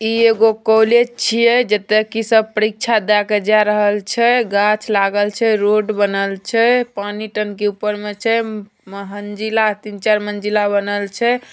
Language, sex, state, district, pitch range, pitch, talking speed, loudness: Angika, female, Bihar, Begusarai, 205-225 Hz, 215 Hz, 145 wpm, -16 LUFS